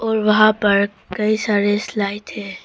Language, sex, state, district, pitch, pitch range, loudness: Hindi, female, Arunachal Pradesh, Papum Pare, 210 Hz, 205-215 Hz, -18 LUFS